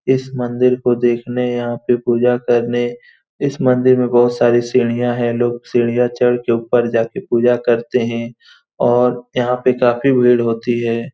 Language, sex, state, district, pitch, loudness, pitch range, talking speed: Hindi, male, Bihar, Saran, 120 Hz, -16 LUFS, 120-125 Hz, 165 wpm